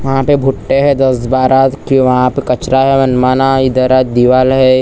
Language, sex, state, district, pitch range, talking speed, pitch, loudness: Hindi, male, Maharashtra, Gondia, 130-135 Hz, 160 wpm, 130 Hz, -11 LUFS